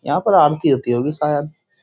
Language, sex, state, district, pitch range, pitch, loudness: Hindi, male, Uttar Pradesh, Jyotiba Phule Nagar, 145-160 Hz, 150 Hz, -17 LUFS